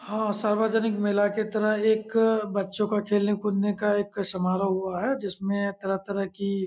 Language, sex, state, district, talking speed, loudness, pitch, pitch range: Hindi, male, Bihar, Kishanganj, 170 wpm, -26 LUFS, 205 Hz, 200-215 Hz